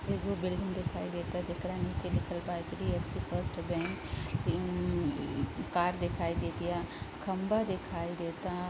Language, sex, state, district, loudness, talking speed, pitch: Bhojpuri, female, Uttar Pradesh, Gorakhpur, -35 LUFS, 125 wpm, 180 Hz